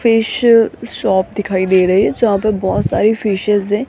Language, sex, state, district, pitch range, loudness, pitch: Hindi, female, Rajasthan, Jaipur, 195-225 Hz, -14 LUFS, 210 Hz